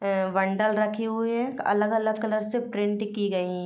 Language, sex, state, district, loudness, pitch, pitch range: Hindi, female, Uttar Pradesh, Jyotiba Phule Nagar, -26 LUFS, 215 Hz, 200-225 Hz